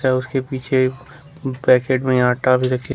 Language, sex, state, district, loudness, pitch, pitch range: Hindi, male, Jharkhand, Ranchi, -18 LUFS, 130 Hz, 130-135 Hz